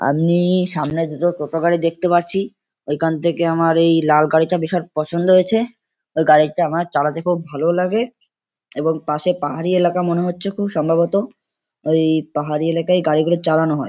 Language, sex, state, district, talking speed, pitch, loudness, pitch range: Bengali, male, West Bengal, Kolkata, 160 wpm, 165 Hz, -18 LUFS, 155-180 Hz